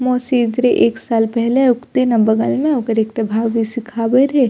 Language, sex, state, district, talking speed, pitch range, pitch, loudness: Maithili, female, Bihar, Purnia, 200 wpm, 225-255 Hz, 235 Hz, -16 LUFS